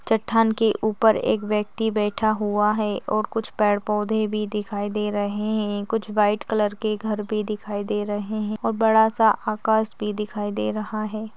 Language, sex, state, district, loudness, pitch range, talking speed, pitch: Hindi, female, Maharashtra, Dhule, -23 LUFS, 210-220 Hz, 190 wpm, 215 Hz